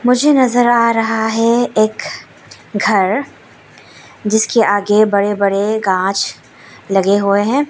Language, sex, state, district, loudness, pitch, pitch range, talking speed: Hindi, female, Arunachal Pradesh, Lower Dibang Valley, -14 LUFS, 215 Hz, 200-235 Hz, 115 wpm